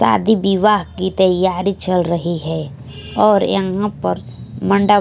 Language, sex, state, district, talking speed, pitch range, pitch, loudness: Hindi, female, Punjab, Fazilka, 130 wpm, 170-200 Hz, 185 Hz, -17 LUFS